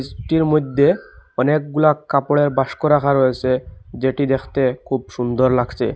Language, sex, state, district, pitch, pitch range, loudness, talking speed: Bengali, male, Assam, Hailakandi, 135 Hz, 130-145 Hz, -18 LUFS, 120 wpm